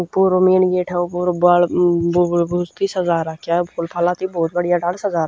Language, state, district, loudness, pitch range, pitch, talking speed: Haryanvi, Haryana, Rohtak, -18 LUFS, 170-180 Hz, 175 Hz, 240 wpm